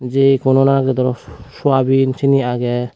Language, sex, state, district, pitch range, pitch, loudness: Chakma, female, Tripura, West Tripura, 125-135 Hz, 130 Hz, -15 LUFS